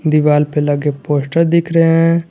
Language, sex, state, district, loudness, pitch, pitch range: Hindi, male, Jharkhand, Garhwa, -14 LUFS, 155 Hz, 150-165 Hz